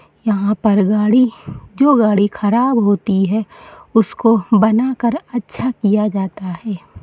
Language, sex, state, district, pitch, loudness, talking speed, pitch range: Hindi, female, Bihar, Saharsa, 215 Hz, -16 LUFS, 130 wpm, 205-235 Hz